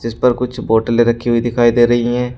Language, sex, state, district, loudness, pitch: Hindi, male, Uttar Pradesh, Shamli, -14 LUFS, 120 Hz